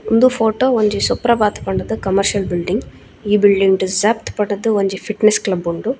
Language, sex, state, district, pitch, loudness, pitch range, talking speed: Tulu, female, Karnataka, Dakshina Kannada, 210 Hz, -16 LUFS, 195-220 Hz, 180 wpm